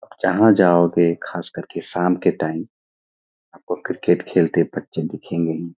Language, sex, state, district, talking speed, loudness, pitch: Hindi, male, Bihar, Saharsa, 135 wpm, -20 LUFS, 85 Hz